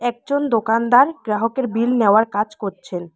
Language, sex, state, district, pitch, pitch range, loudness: Bengali, female, West Bengal, Alipurduar, 230 Hz, 210-250 Hz, -18 LUFS